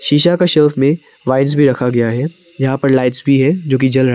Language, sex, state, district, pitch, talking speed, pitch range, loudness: Hindi, male, Arunachal Pradesh, Papum Pare, 135 Hz, 245 wpm, 130-150 Hz, -14 LUFS